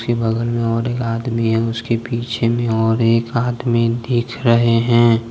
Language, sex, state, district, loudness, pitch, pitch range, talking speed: Hindi, male, Jharkhand, Deoghar, -17 LUFS, 115 Hz, 115-120 Hz, 180 wpm